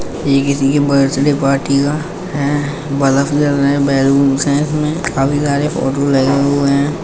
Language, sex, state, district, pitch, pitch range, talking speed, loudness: Hindi, female, Uttar Pradesh, Etah, 140 Hz, 140-145 Hz, 170 wpm, -14 LUFS